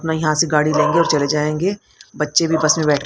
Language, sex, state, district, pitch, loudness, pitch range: Hindi, female, Haryana, Rohtak, 155 Hz, -17 LUFS, 150-160 Hz